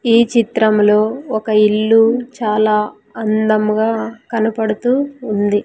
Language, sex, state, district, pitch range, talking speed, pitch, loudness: Telugu, female, Andhra Pradesh, Sri Satya Sai, 215-230 Hz, 85 wpm, 220 Hz, -15 LUFS